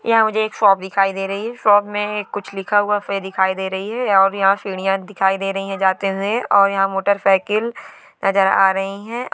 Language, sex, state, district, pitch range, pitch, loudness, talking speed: Hindi, female, Bihar, Sitamarhi, 195-210 Hz, 195 Hz, -18 LUFS, 210 wpm